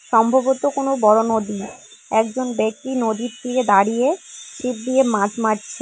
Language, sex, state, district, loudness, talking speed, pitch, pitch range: Bengali, female, West Bengal, Cooch Behar, -19 LUFS, 135 wpm, 230 Hz, 220-260 Hz